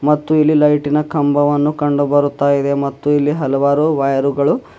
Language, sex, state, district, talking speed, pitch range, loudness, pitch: Kannada, male, Karnataka, Bidar, 150 wpm, 140-150 Hz, -15 LUFS, 145 Hz